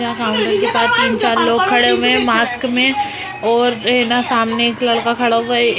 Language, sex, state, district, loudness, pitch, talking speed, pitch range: Hindi, female, Bihar, Muzaffarpur, -14 LUFS, 235 Hz, 195 wpm, 230-245 Hz